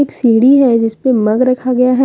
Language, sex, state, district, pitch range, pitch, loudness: Hindi, female, Jharkhand, Deoghar, 230-260 Hz, 255 Hz, -11 LUFS